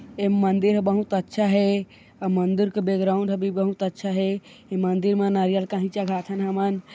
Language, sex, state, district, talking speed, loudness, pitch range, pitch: Chhattisgarhi, male, Chhattisgarh, Korba, 190 wpm, -23 LUFS, 190-200 Hz, 195 Hz